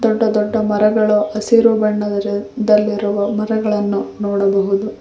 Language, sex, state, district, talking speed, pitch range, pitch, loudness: Kannada, female, Karnataka, Koppal, 85 wpm, 205-215 Hz, 210 Hz, -16 LUFS